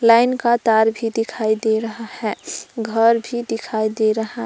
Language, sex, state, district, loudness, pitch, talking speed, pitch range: Hindi, female, Jharkhand, Palamu, -19 LUFS, 225 Hz, 175 wpm, 220-230 Hz